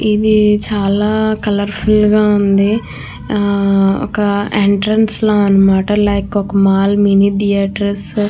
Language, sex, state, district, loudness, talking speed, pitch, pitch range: Telugu, female, Andhra Pradesh, Krishna, -13 LUFS, 125 wpm, 205 Hz, 200-210 Hz